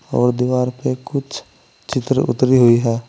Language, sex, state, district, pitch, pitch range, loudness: Hindi, male, Uttar Pradesh, Saharanpur, 125 Hz, 120-130 Hz, -17 LUFS